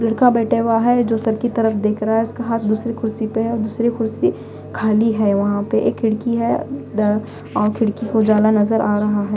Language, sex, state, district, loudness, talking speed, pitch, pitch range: Hindi, female, Bihar, Katihar, -18 LUFS, 235 wpm, 220 Hz, 215-230 Hz